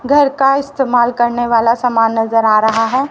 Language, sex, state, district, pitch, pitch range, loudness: Hindi, female, Haryana, Rohtak, 240 Hz, 225-270 Hz, -13 LUFS